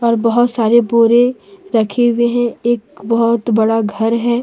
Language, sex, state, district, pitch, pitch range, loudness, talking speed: Hindi, female, Jharkhand, Deoghar, 235 Hz, 225-240 Hz, -14 LUFS, 165 wpm